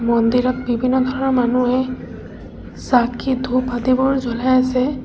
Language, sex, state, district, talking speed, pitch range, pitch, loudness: Assamese, female, Assam, Sonitpur, 105 wpm, 245-260 Hz, 255 Hz, -18 LUFS